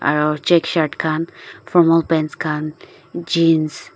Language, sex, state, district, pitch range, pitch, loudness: Nagamese, female, Nagaland, Dimapur, 155-165 Hz, 160 Hz, -17 LUFS